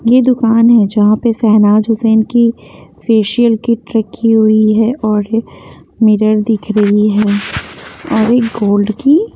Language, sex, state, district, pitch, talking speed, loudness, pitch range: Hindi, female, Haryana, Jhajjar, 220 Hz, 145 wpm, -11 LUFS, 215-230 Hz